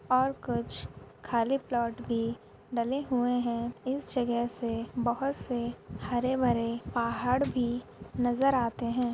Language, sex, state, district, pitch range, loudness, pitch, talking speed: Hindi, female, Maharashtra, Aurangabad, 235-250 Hz, -31 LUFS, 240 Hz, 130 wpm